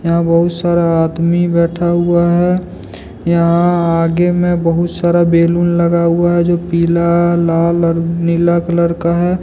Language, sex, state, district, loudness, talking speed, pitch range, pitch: Hindi, male, Jharkhand, Deoghar, -13 LUFS, 155 wpm, 170-175 Hz, 170 Hz